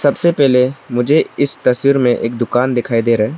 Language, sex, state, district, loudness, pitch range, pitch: Hindi, male, Arunachal Pradesh, Lower Dibang Valley, -14 LUFS, 120-140 Hz, 125 Hz